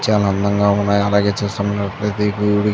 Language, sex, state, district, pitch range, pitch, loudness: Telugu, male, Andhra Pradesh, Chittoor, 100-105 Hz, 100 Hz, -17 LUFS